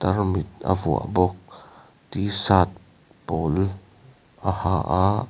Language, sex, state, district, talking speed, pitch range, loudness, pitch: Mizo, male, Mizoram, Aizawl, 115 wpm, 90-100 Hz, -23 LUFS, 95 Hz